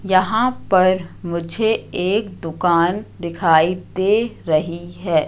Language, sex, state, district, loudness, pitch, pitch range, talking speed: Hindi, female, Madhya Pradesh, Katni, -19 LUFS, 180 Hz, 170-200 Hz, 100 wpm